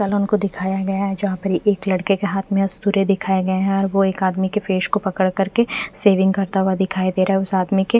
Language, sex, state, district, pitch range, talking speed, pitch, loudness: Hindi, female, Punjab, Fazilka, 190-200 Hz, 265 wpm, 195 Hz, -19 LUFS